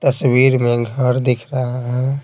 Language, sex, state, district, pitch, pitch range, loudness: Hindi, male, Bihar, Patna, 125 Hz, 125-135 Hz, -17 LUFS